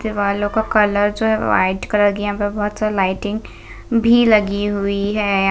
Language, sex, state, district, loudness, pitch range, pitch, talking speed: Hindi, female, Bihar, Gaya, -17 LUFS, 200-215 Hz, 205 Hz, 195 wpm